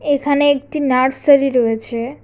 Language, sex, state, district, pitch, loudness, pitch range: Bengali, female, Tripura, West Tripura, 275 Hz, -15 LUFS, 250-285 Hz